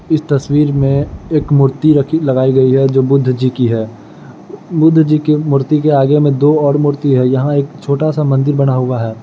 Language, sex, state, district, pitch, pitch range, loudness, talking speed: Hindi, male, Bihar, Jahanabad, 140 Hz, 130-150 Hz, -12 LUFS, 215 wpm